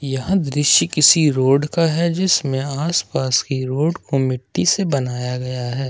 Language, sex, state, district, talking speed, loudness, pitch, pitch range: Hindi, male, Jharkhand, Ranchi, 160 wpm, -18 LUFS, 140 Hz, 130-165 Hz